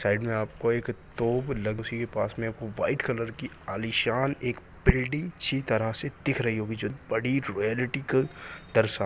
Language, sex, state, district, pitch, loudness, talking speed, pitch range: Hindi, male, Bihar, Jahanabad, 115 Hz, -29 LUFS, 180 wpm, 110-130 Hz